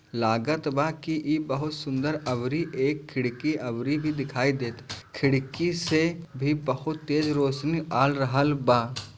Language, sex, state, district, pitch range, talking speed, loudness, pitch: Bhojpuri, male, Bihar, Gopalganj, 130-155 Hz, 145 wpm, -27 LUFS, 140 Hz